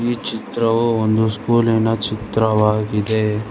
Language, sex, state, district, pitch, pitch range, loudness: Kannada, male, Karnataka, Bangalore, 110 Hz, 105-115 Hz, -18 LUFS